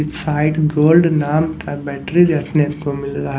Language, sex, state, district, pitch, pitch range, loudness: Hindi, male, Haryana, Jhajjar, 150 Hz, 145-160 Hz, -16 LUFS